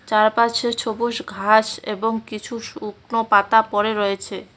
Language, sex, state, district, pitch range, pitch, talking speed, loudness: Bengali, female, West Bengal, Cooch Behar, 210-230 Hz, 220 Hz, 120 wpm, -20 LUFS